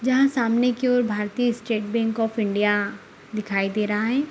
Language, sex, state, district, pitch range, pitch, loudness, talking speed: Hindi, female, Bihar, Araria, 210-245 Hz, 225 Hz, -23 LUFS, 180 wpm